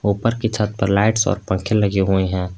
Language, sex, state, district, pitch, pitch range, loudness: Hindi, male, Jharkhand, Palamu, 100 Hz, 95-110 Hz, -19 LUFS